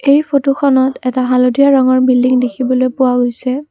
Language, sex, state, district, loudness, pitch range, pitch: Assamese, female, Assam, Kamrup Metropolitan, -12 LUFS, 255-275 Hz, 255 Hz